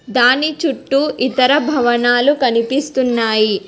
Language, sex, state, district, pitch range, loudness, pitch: Telugu, female, Telangana, Hyderabad, 240-280 Hz, -15 LUFS, 255 Hz